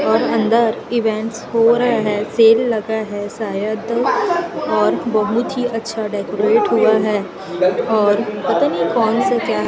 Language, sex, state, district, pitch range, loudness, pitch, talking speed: Hindi, female, Chhattisgarh, Raipur, 210-235 Hz, -17 LUFS, 220 Hz, 150 wpm